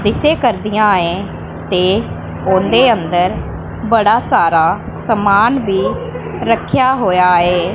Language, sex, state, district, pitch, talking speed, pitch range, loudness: Punjabi, female, Punjab, Pathankot, 200 Hz, 110 wpm, 180-225 Hz, -14 LUFS